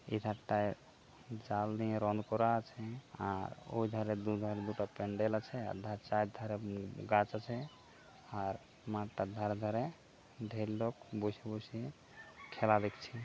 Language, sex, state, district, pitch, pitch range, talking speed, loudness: Bengali, male, West Bengal, Purulia, 110 Hz, 105-115 Hz, 120 wpm, -39 LUFS